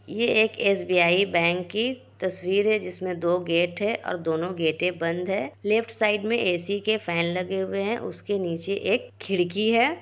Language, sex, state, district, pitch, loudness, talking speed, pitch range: Hindi, female, Bihar, Kishanganj, 190 Hz, -25 LUFS, 180 wpm, 175-215 Hz